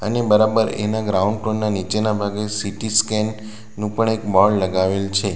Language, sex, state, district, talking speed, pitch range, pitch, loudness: Gujarati, male, Gujarat, Valsad, 170 wpm, 100-110 Hz, 105 Hz, -19 LUFS